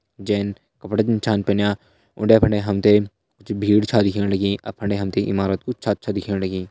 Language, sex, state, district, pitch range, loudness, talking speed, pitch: Garhwali, male, Uttarakhand, Tehri Garhwal, 100-105 Hz, -20 LUFS, 205 wpm, 105 Hz